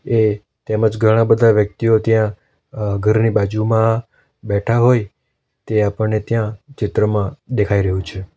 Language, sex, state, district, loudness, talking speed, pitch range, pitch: Gujarati, male, Gujarat, Valsad, -17 LUFS, 130 wpm, 105-115 Hz, 110 Hz